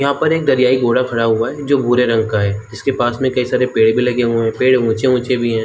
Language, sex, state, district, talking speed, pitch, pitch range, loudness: Hindi, male, Jharkhand, Jamtara, 295 wpm, 125 Hz, 115-130 Hz, -15 LUFS